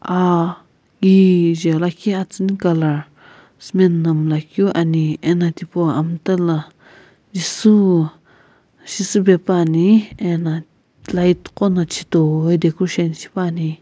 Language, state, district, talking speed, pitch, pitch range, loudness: Sumi, Nagaland, Kohima, 95 wpm, 175 Hz, 160-185 Hz, -17 LUFS